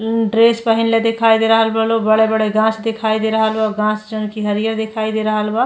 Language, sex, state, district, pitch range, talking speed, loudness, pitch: Bhojpuri, female, Uttar Pradesh, Ghazipur, 215-225 Hz, 220 wpm, -16 LUFS, 220 Hz